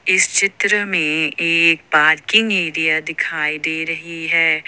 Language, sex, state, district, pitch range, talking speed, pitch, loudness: Hindi, female, Jharkhand, Ranchi, 155-170 Hz, 165 wpm, 165 Hz, -16 LUFS